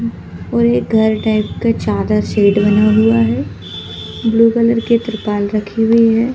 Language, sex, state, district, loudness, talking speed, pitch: Hindi, female, Madhya Pradesh, Bhopal, -14 LUFS, 160 wpm, 215 Hz